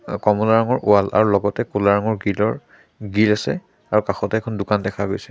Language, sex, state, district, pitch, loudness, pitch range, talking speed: Assamese, male, Assam, Sonitpur, 105 Hz, -19 LUFS, 100-110 Hz, 190 wpm